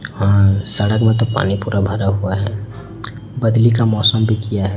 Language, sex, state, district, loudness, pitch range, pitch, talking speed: Hindi, male, Chhattisgarh, Raipur, -16 LUFS, 100-110 Hz, 110 Hz, 190 wpm